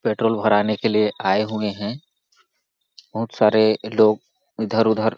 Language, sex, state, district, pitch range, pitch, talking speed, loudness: Hindi, male, Chhattisgarh, Balrampur, 105-110 Hz, 110 Hz, 140 wpm, -20 LUFS